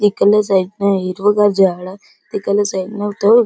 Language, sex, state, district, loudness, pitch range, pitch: Marathi, male, Maharashtra, Chandrapur, -15 LUFS, 190-205 Hz, 200 Hz